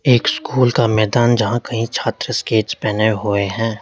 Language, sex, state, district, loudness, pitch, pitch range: Hindi, male, Uttar Pradesh, Lalitpur, -17 LUFS, 115 Hz, 110-120 Hz